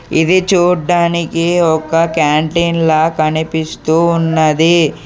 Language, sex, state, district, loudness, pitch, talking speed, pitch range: Telugu, male, Telangana, Hyderabad, -13 LUFS, 165 Hz, 85 wpm, 160-170 Hz